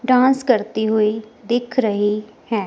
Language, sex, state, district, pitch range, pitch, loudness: Hindi, female, Himachal Pradesh, Shimla, 215-245 Hz, 220 Hz, -19 LUFS